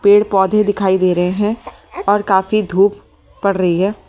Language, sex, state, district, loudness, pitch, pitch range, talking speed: Hindi, female, Delhi, New Delhi, -15 LUFS, 200 Hz, 190-205 Hz, 160 wpm